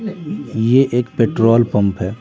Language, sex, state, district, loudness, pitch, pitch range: Hindi, male, Bihar, Patna, -16 LUFS, 115 Hz, 110-130 Hz